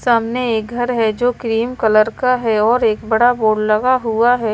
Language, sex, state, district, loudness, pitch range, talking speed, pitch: Hindi, female, Himachal Pradesh, Shimla, -16 LUFS, 220-245 Hz, 210 wpm, 230 Hz